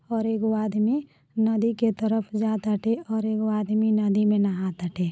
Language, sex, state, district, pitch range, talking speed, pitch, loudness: Bhojpuri, female, Uttar Pradesh, Deoria, 210-220 Hz, 150 wpm, 215 Hz, -25 LUFS